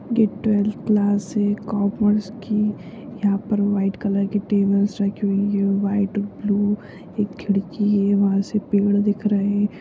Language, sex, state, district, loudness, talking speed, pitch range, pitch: Hindi, female, Bihar, Jahanabad, -21 LUFS, 160 wpm, 200-210 Hz, 205 Hz